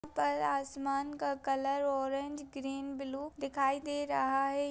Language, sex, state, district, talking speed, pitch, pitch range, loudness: Hindi, female, Chhattisgarh, Kabirdham, 140 wpm, 275 Hz, 270-280 Hz, -35 LUFS